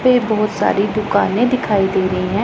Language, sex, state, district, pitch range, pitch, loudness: Hindi, female, Punjab, Pathankot, 195-225 Hz, 210 Hz, -16 LUFS